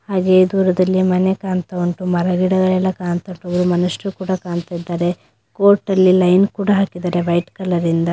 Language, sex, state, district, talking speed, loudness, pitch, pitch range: Kannada, female, Karnataka, Dakshina Kannada, 155 wpm, -17 LUFS, 185 Hz, 175-185 Hz